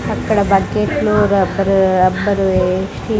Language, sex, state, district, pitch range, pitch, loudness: Telugu, female, Andhra Pradesh, Sri Satya Sai, 190-205 Hz, 195 Hz, -15 LUFS